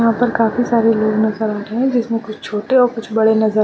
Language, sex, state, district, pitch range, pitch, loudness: Hindi, female, Uttarakhand, Uttarkashi, 215-235 Hz, 225 Hz, -16 LUFS